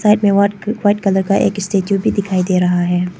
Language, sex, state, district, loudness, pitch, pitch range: Hindi, female, Arunachal Pradesh, Papum Pare, -15 LUFS, 200 Hz, 185-205 Hz